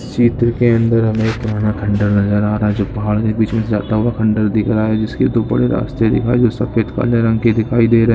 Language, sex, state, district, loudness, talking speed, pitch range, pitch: Hindi, male, Andhra Pradesh, Guntur, -15 LUFS, 280 wpm, 105-115 Hz, 110 Hz